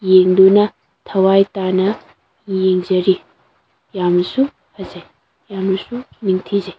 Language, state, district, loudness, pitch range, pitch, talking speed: Manipuri, Manipur, Imphal West, -16 LUFS, 185-200 Hz, 190 Hz, 70 wpm